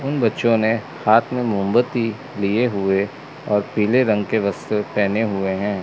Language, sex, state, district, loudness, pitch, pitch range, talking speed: Hindi, male, Chandigarh, Chandigarh, -20 LUFS, 105 Hz, 100-115 Hz, 165 wpm